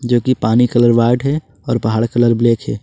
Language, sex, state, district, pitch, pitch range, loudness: Hindi, male, Jharkhand, Ranchi, 120 Hz, 115-125 Hz, -15 LUFS